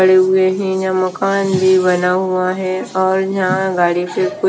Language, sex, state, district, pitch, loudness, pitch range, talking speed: Hindi, female, Bihar, West Champaran, 185 Hz, -15 LUFS, 185-190 Hz, 200 wpm